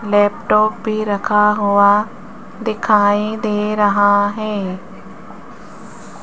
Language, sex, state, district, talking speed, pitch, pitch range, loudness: Hindi, female, Rajasthan, Jaipur, 75 wpm, 210 Hz, 205-215 Hz, -16 LUFS